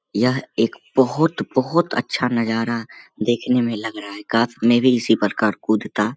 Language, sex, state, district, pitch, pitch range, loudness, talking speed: Hindi, male, Bihar, Begusarai, 120 Hz, 110-125 Hz, -20 LUFS, 175 wpm